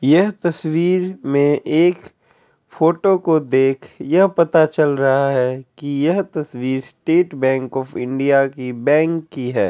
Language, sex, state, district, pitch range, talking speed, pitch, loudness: Hindi, male, Bihar, Kishanganj, 135-170 Hz, 140 wpm, 150 Hz, -17 LUFS